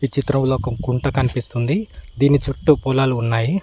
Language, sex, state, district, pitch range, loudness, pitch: Telugu, male, Telangana, Mahabubabad, 125-140 Hz, -19 LUFS, 135 Hz